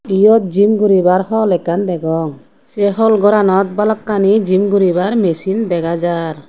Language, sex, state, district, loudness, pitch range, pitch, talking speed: Chakma, female, Tripura, Unakoti, -14 LUFS, 175-210 Hz, 195 Hz, 140 wpm